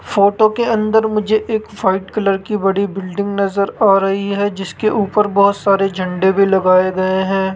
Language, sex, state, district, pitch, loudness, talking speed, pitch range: Hindi, male, Rajasthan, Jaipur, 200 Hz, -15 LUFS, 180 wpm, 195-210 Hz